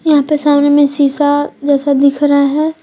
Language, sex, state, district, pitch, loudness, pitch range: Hindi, female, Jharkhand, Deoghar, 290 Hz, -12 LUFS, 285-295 Hz